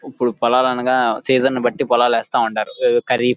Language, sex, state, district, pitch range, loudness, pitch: Telugu, male, Andhra Pradesh, Guntur, 125-130 Hz, -17 LUFS, 130 Hz